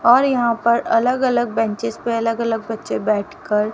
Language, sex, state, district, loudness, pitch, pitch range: Hindi, female, Haryana, Rohtak, -19 LUFS, 230 Hz, 225-240 Hz